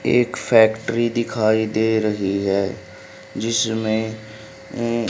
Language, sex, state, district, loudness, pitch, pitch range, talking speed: Hindi, male, Haryana, Rohtak, -20 LUFS, 110 Hz, 110-115 Hz, 95 wpm